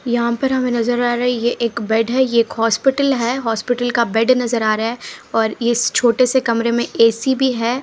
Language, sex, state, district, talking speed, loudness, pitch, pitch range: Hindi, female, Punjab, Pathankot, 220 wpm, -17 LUFS, 240 Hz, 230-250 Hz